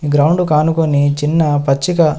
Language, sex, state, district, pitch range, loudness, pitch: Telugu, male, Telangana, Adilabad, 145-160 Hz, -14 LUFS, 150 Hz